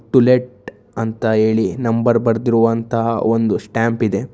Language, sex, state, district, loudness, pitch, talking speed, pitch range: Kannada, male, Karnataka, Bangalore, -17 LUFS, 115 Hz, 125 wpm, 110-120 Hz